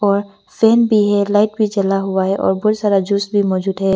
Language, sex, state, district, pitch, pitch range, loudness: Hindi, female, Arunachal Pradesh, Lower Dibang Valley, 200 Hz, 195-210 Hz, -16 LUFS